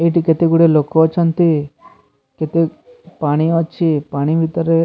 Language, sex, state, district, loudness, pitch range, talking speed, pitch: Odia, male, Odisha, Sambalpur, -16 LUFS, 155-165 Hz, 125 wpm, 165 Hz